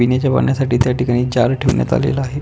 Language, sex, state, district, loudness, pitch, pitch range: Marathi, male, Maharashtra, Pune, -16 LUFS, 125 Hz, 125-135 Hz